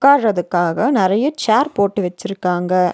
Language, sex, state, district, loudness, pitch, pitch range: Tamil, female, Tamil Nadu, Nilgiris, -17 LUFS, 200 Hz, 180-255 Hz